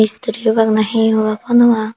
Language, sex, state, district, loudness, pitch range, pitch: Chakma, female, Tripura, Dhalai, -14 LUFS, 215-230 Hz, 220 Hz